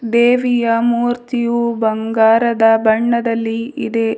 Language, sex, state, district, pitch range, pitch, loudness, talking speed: Kannada, female, Karnataka, Bidar, 225-235 Hz, 230 Hz, -15 LUFS, 70 wpm